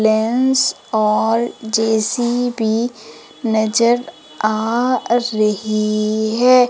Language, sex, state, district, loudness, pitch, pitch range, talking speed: Hindi, female, Madhya Pradesh, Umaria, -17 LUFS, 225 Hz, 215-240 Hz, 65 wpm